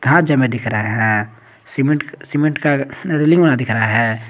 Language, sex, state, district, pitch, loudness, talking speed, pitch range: Hindi, male, Jharkhand, Garhwa, 130 Hz, -16 LUFS, 155 wpm, 115-150 Hz